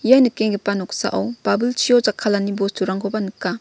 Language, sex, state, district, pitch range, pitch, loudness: Garo, female, Meghalaya, West Garo Hills, 200-235 Hz, 210 Hz, -19 LUFS